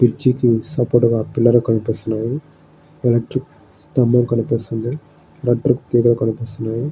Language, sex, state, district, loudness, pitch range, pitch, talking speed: Telugu, male, Andhra Pradesh, Srikakulam, -18 LUFS, 115-130 Hz, 120 Hz, 105 wpm